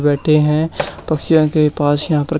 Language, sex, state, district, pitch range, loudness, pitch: Hindi, male, Haryana, Charkhi Dadri, 145-155 Hz, -16 LUFS, 155 Hz